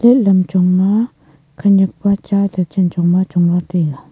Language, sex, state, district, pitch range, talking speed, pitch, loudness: Wancho, female, Arunachal Pradesh, Longding, 175-200 Hz, 190 wpm, 185 Hz, -15 LUFS